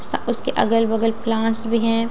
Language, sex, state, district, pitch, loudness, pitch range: Hindi, female, Bihar, Katihar, 225 Hz, -19 LUFS, 225-230 Hz